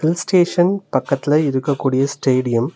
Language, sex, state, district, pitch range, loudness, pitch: Tamil, male, Tamil Nadu, Nilgiris, 130-175 Hz, -17 LUFS, 140 Hz